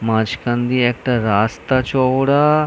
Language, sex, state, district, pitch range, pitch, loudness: Bengali, male, West Bengal, North 24 Parganas, 115-130 Hz, 125 Hz, -17 LUFS